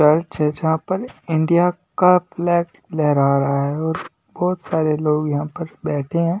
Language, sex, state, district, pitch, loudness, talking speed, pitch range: Hindi, male, Delhi, New Delhi, 160 Hz, -20 LUFS, 170 wpm, 150-175 Hz